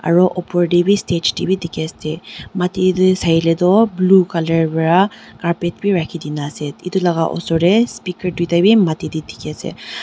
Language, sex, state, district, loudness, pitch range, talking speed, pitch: Nagamese, female, Nagaland, Dimapur, -16 LUFS, 165-185 Hz, 185 wpm, 175 Hz